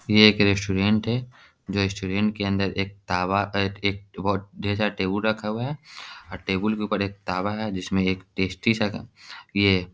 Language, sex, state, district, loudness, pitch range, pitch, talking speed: Hindi, male, Bihar, Jahanabad, -24 LUFS, 95-105 Hz, 100 Hz, 185 wpm